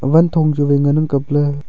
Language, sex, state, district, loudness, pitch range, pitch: Wancho, male, Arunachal Pradesh, Longding, -15 LUFS, 140-155 Hz, 145 Hz